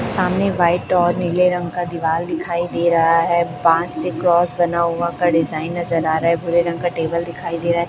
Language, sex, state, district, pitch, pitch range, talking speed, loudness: Hindi, male, Chhattisgarh, Raipur, 170 Hz, 170-175 Hz, 230 wpm, -18 LUFS